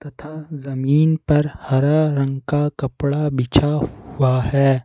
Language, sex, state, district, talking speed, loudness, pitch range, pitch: Hindi, male, Jharkhand, Ranchi, 125 wpm, -19 LUFS, 135-150 Hz, 145 Hz